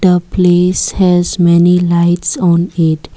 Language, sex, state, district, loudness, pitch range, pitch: English, female, Assam, Kamrup Metropolitan, -11 LUFS, 170-180 Hz, 175 Hz